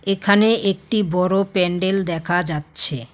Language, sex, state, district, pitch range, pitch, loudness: Bengali, female, West Bengal, Alipurduar, 175-195 Hz, 190 Hz, -19 LUFS